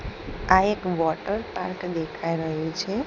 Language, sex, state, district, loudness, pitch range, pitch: Gujarati, female, Gujarat, Gandhinagar, -25 LUFS, 160-190 Hz, 170 Hz